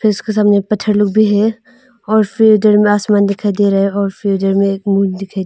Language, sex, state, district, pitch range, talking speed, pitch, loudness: Hindi, female, Arunachal Pradesh, Longding, 200-215 Hz, 220 wpm, 205 Hz, -13 LUFS